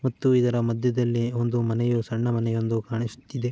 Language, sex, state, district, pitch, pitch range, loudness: Kannada, male, Karnataka, Mysore, 120 Hz, 115-125 Hz, -25 LUFS